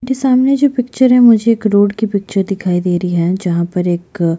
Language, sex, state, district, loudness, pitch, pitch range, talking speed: Hindi, female, Chhattisgarh, Jashpur, -13 LUFS, 200 Hz, 180-245 Hz, 245 wpm